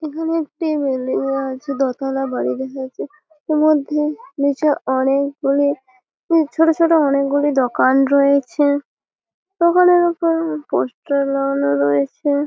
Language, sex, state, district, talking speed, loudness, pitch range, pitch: Bengali, female, West Bengal, Malda, 110 wpm, -18 LUFS, 270-315 Hz, 285 Hz